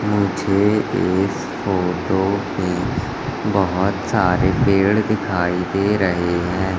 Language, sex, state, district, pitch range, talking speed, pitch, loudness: Hindi, male, Madhya Pradesh, Katni, 90-100 Hz, 95 wpm, 95 Hz, -19 LUFS